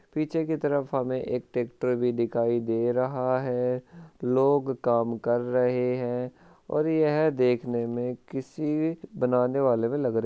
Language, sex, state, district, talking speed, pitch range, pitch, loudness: Hindi, male, Rajasthan, Churu, 160 wpm, 120-145 Hz, 125 Hz, -27 LUFS